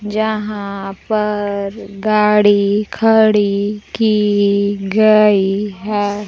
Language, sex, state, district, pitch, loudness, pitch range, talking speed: Hindi, female, Bihar, Kaimur, 205 Hz, -15 LUFS, 200-215 Hz, 65 wpm